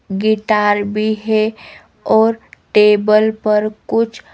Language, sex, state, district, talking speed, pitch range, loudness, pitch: Hindi, female, Himachal Pradesh, Shimla, 95 wpm, 210-220 Hz, -15 LUFS, 215 Hz